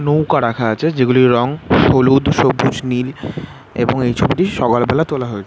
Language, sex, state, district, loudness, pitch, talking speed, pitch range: Bengali, male, West Bengal, Jhargram, -15 LUFS, 130 Hz, 165 wpm, 120-145 Hz